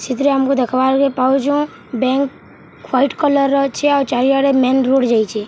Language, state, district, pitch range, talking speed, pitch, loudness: Sambalpuri, Odisha, Sambalpur, 255-275 Hz, 175 wpm, 270 Hz, -15 LUFS